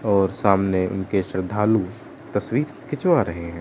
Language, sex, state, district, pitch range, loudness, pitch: Hindi, male, Chandigarh, Chandigarh, 95-105 Hz, -22 LUFS, 95 Hz